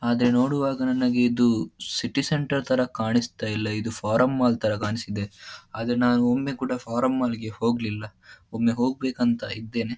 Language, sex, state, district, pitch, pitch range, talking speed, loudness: Kannada, male, Karnataka, Dakshina Kannada, 120 Hz, 110-125 Hz, 155 wpm, -24 LUFS